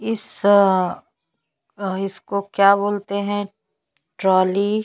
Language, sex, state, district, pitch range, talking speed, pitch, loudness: Hindi, female, Chhattisgarh, Bastar, 190-205 Hz, 85 wpm, 200 Hz, -19 LUFS